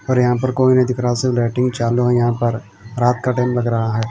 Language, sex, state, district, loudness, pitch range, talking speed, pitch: Hindi, male, Himachal Pradesh, Shimla, -17 LUFS, 120-125 Hz, 275 wpm, 120 Hz